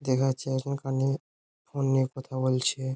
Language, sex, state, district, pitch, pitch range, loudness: Bengali, male, West Bengal, Jhargram, 130 Hz, 130-135 Hz, -28 LUFS